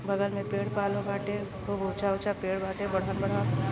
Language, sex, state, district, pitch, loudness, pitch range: Bhojpuri, male, Uttar Pradesh, Deoria, 200 Hz, -31 LUFS, 190-200 Hz